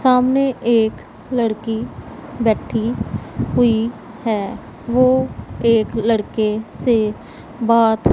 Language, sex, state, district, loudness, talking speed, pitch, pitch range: Hindi, female, Punjab, Pathankot, -18 LUFS, 80 wpm, 230 Hz, 220-240 Hz